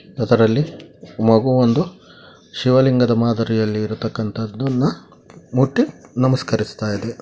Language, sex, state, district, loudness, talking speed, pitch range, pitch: Kannada, male, Karnataka, Gulbarga, -18 LUFS, 75 wpm, 110-130 Hz, 115 Hz